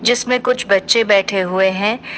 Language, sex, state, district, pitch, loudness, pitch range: Hindi, female, Uttar Pradesh, Shamli, 210 Hz, -15 LUFS, 195-245 Hz